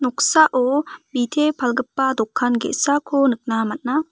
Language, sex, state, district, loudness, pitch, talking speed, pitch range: Garo, female, Meghalaya, West Garo Hills, -19 LUFS, 265 Hz, 100 wpm, 245-300 Hz